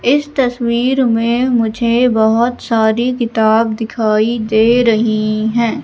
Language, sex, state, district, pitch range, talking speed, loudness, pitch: Hindi, female, Madhya Pradesh, Katni, 220-245 Hz, 115 wpm, -14 LUFS, 230 Hz